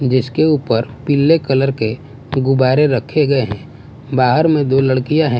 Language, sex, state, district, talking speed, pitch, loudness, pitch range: Hindi, male, Bihar, West Champaran, 155 wpm, 135 Hz, -15 LUFS, 130-150 Hz